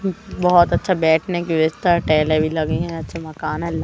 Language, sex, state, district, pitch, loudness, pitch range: Hindi, female, Madhya Pradesh, Katni, 165 Hz, -19 LUFS, 155-175 Hz